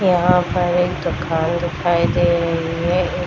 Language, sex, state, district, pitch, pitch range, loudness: Hindi, female, Bihar, Darbhanga, 175 Hz, 165-180 Hz, -18 LUFS